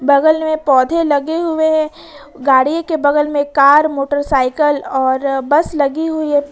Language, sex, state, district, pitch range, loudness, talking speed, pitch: Hindi, female, Jharkhand, Ranchi, 280-315 Hz, -14 LUFS, 155 wpm, 290 Hz